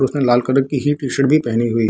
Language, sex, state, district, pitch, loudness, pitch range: Hindi, male, Bihar, Samastipur, 135 Hz, -17 LUFS, 120-140 Hz